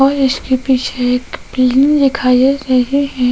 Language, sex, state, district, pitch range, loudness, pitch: Hindi, female, Goa, North and South Goa, 255-275 Hz, -13 LUFS, 260 Hz